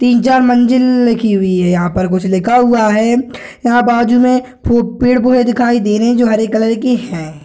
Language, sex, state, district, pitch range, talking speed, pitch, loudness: Hindi, male, Bihar, Gaya, 215-245 Hz, 215 wpm, 240 Hz, -12 LUFS